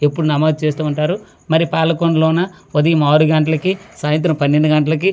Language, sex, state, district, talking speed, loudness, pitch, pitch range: Telugu, male, Andhra Pradesh, Manyam, 140 wpm, -16 LUFS, 155 Hz, 150-165 Hz